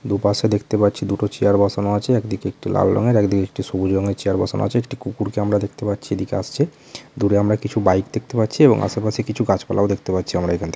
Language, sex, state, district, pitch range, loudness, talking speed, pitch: Bengali, male, West Bengal, Purulia, 100-115 Hz, -20 LUFS, 235 wpm, 100 Hz